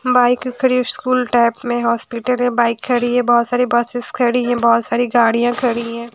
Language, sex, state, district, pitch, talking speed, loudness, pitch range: Hindi, female, Haryana, Jhajjar, 245 Hz, 205 wpm, -16 LUFS, 235-245 Hz